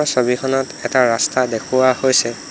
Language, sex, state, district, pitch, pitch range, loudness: Assamese, male, Assam, Hailakandi, 130 Hz, 120-130 Hz, -17 LUFS